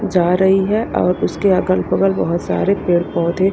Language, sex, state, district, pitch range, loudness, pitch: Hindi, female, Haryana, Rohtak, 170-195 Hz, -16 LUFS, 180 Hz